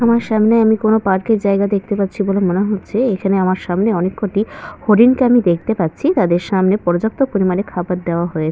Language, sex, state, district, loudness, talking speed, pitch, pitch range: Bengali, female, West Bengal, Malda, -16 LUFS, 195 wpm, 200 Hz, 185-220 Hz